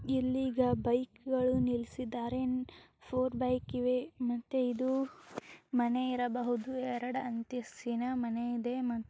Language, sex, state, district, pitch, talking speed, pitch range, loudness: Kannada, female, Karnataka, Bijapur, 250 Hz, 110 wpm, 240-255 Hz, -34 LUFS